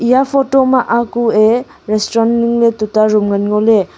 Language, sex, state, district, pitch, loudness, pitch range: Wancho, female, Arunachal Pradesh, Longding, 230 Hz, -13 LUFS, 215-240 Hz